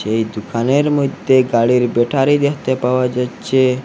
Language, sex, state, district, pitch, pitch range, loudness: Bengali, male, Assam, Hailakandi, 125 Hz, 120-135 Hz, -16 LUFS